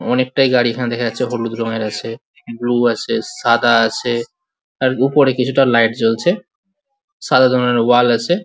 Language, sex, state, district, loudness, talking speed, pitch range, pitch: Bengali, male, West Bengal, Malda, -16 LUFS, 135 wpm, 115-135 Hz, 125 Hz